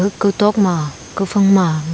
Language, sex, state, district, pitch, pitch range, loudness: Wancho, female, Arunachal Pradesh, Longding, 195 Hz, 170-200 Hz, -16 LUFS